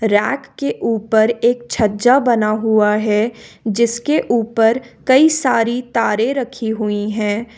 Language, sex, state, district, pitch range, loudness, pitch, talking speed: Hindi, female, Jharkhand, Ranchi, 215-245 Hz, -16 LUFS, 230 Hz, 125 wpm